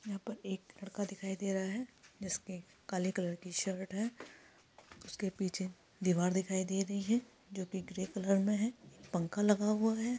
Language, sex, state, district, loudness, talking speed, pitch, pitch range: Hindi, female, Bihar, East Champaran, -36 LUFS, 190 wpm, 195 Hz, 190-210 Hz